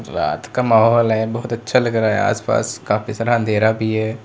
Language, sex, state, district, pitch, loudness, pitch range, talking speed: Hindi, male, Uttar Pradesh, Lalitpur, 110 Hz, -18 LUFS, 110-115 Hz, 210 wpm